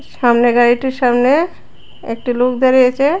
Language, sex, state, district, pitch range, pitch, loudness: Bengali, female, Tripura, West Tripura, 240-265 Hz, 250 Hz, -13 LUFS